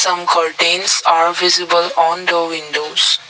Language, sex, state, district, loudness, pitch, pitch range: English, male, Assam, Kamrup Metropolitan, -14 LUFS, 170 Hz, 165-180 Hz